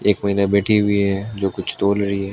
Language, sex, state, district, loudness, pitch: Hindi, male, Rajasthan, Bikaner, -19 LUFS, 100 Hz